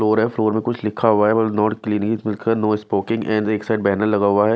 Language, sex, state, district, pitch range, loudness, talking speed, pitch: Hindi, male, Bihar, West Champaran, 105-110 Hz, -19 LUFS, 235 wpm, 110 Hz